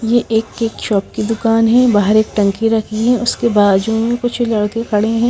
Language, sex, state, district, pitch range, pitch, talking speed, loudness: Hindi, female, Himachal Pradesh, Shimla, 215-235 Hz, 225 Hz, 215 wpm, -15 LUFS